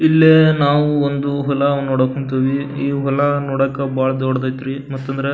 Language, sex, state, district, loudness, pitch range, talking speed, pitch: Kannada, male, Karnataka, Belgaum, -17 LUFS, 135-140 Hz, 155 wpm, 140 Hz